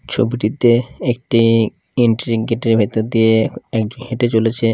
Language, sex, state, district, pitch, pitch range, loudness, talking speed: Bengali, male, Odisha, Khordha, 115 Hz, 110-120 Hz, -16 LUFS, 100 wpm